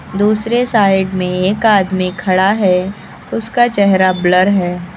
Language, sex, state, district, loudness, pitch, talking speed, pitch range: Hindi, female, Uttar Pradesh, Lucknow, -13 LUFS, 190 Hz, 135 wpm, 185-210 Hz